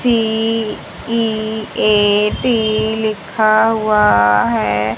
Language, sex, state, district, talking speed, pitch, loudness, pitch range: Hindi, male, Haryana, Charkhi Dadri, 50 wpm, 215 Hz, -15 LUFS, 210-225 Hz